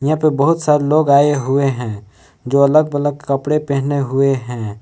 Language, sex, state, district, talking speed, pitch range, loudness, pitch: Hindi, male, Jharkhand, Palamu, 185 wpm, 130-150 Hz, -15 LUFS, 140 Hz